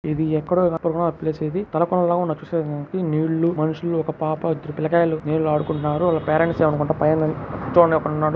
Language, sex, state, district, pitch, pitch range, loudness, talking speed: Telugu, male, Andhra Pradesh, Chittoor, 160 Hz, 155-170 Hz, -21 LUFS, 150 wpm